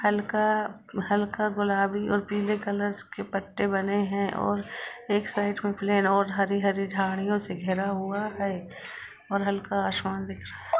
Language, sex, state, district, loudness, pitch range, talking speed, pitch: Hindi, female, Uttar Pradesh, Jalaun, -28 LUFS, 195-205 Hz, 155 wpm, 200 Hz